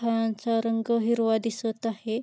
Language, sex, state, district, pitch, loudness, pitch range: Marathi, female, Maharashtra, Pune, 225 Hz, -27 LUFS, 225-230 Hz